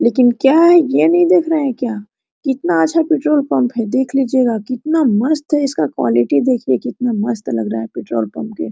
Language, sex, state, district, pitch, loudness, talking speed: Hindi, female, Jharkhand, Sahebganj, 250 Hz, -15 LUFS, 205 wpm